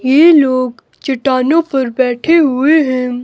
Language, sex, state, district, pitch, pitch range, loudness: Hindi, male, Himachal Pradesh, Shimla, 265 Hz, 255-310 Hz, -12 LUFS